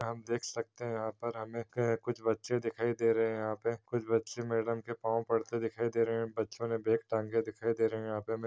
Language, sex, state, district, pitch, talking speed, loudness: Hindi, male, Chhattisgarh, Kabirdham, 115 Hz, 260 wpm, -34 LUFS